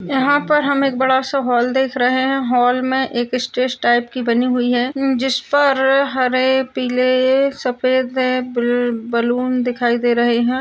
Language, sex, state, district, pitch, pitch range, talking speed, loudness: Hindi, female, Uttar Pradesh, Hamirpur, 255 Hz, 245-265 Hz, 180 wpm, -17 LUFS